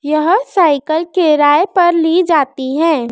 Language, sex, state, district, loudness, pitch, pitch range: Hindi, female, Madhya Pradesh, Dhar, -13 LUFS, 320 Hz, 295-350 Hz